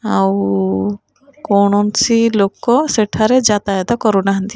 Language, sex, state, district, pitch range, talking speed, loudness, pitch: Odia, female, Odisha, Khordha, 190-230 Hz, 80 wpm, -14 LUFS, 205 Hz